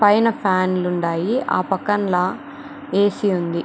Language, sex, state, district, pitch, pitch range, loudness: Telugu, female, Andhra Pradesh, Chittoor, 200 Hz, 180-225 Hz, -20 LUFS